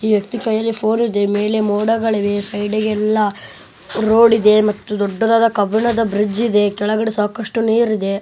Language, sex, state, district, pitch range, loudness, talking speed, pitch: Kannada, male, Karnataka, Bellary, 205-225 Hz, -16 LUFS, 145 wpm, 215 Hz